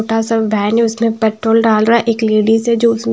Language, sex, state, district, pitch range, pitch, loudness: Hindi, female, Himachal Pradesh, Shimla, 220-230 Hz, 225 Hz, -13 LUFS